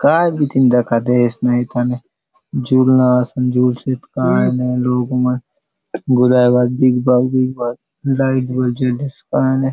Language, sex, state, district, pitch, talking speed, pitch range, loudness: Halbi, male, Chhattisgarh, Bastar, 125 Hz, 140 wpm, 125-130 Hz, -16 LUFS